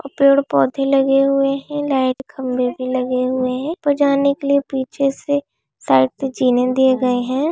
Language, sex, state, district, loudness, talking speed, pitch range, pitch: Hindi, female, West Bengal, Kolkata, -17 LUFS, 165 wpm, 255-280 Hz, 270 Hz